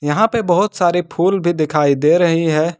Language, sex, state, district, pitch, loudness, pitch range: Hindi, male, Jharkhand, Ranchi, 175 Hz, -15 LUFS, 155-180 Hz